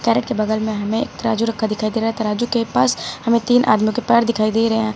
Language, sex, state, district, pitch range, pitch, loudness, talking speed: Hindi, female, Uttar Pradesh, Lucknow, 215-235 Hz, 225 Hz, -18 LUFS, 280 wpm